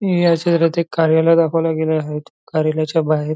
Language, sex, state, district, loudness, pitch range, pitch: Marathi, male, Maharashtra, Nagpur, -17 LUFS, 155-165 Hz, 160 Hz